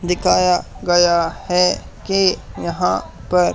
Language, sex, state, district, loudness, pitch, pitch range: Hindi, male, Haryana, Charkhi Dadri, -18 LUFS, 180 Hz, 170-180 Hz